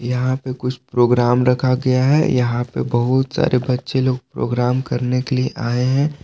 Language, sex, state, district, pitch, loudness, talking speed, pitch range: Hindi, male, Jharkhand, Palamu, 125 Hz, -18 LUFS, 185 wpm, 125-130 Hz